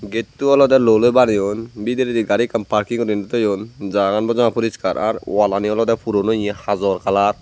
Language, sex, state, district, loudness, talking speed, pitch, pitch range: Chakma, male, Tripura, Dhalai, -18 LUFS, 170 wpm, 110 Hz, 100-115 Hz